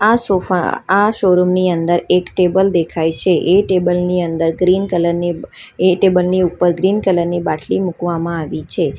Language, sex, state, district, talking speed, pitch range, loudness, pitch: Gujarati, female, Gujarat, Valsad, 165 wpm, 175-185 Hz, -15 LUFS, 180 Hz